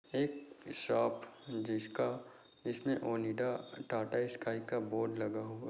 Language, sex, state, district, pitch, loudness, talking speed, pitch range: Hindi, male, Bihar, Jahanabad, 115 Hz, -38 LUFS, 125 wpm, 110-125 Hz